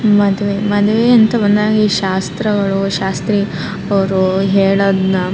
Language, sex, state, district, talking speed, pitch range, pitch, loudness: Kannada, female, Karnataka, Raichur, 110 wpm, 190-210 Hz, 200 Hz, -14 LUFS